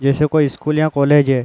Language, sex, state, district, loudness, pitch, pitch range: Hindi, male, Uttar Pradesh, Varanasi, -15 LUFS, 145 Hz, 140-150 Hz